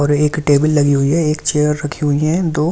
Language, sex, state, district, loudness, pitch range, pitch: Hindi, male, Delhi, New Delhi, -15 LUFS, 145-155 Hz, 150 Hz